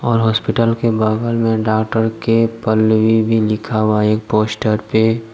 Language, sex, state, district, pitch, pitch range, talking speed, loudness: Hindi, male, Jharkhand, Deoghar, 110 Hz, 110-115 Hz, 170 wpm, -16 LUFS